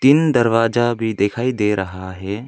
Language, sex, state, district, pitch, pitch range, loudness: Hindi, male, Arunachal Pradesh, Longding, 115 Hz, 100-120 Hz, -18 LUFS